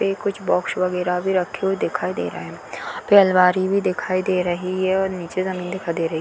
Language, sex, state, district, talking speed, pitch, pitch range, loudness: Hindi, female, Bihar, Darbhanga, 260 wpm, 185 Hz, 180-190 Hz, -21 LUFS